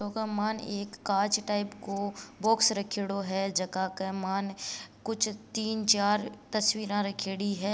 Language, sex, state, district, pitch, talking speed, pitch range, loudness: Marwari, female, Rajasthan, Nagaur, 205 Hz, 145 wpm, 195-215 Hz, -30 LUFS